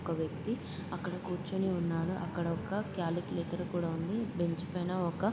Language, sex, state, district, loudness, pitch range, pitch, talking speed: Telugu, female, Andhra Pradesh, Guntur, -36 LUFS, 170-185 Hz, 175 Hz, 135 wpm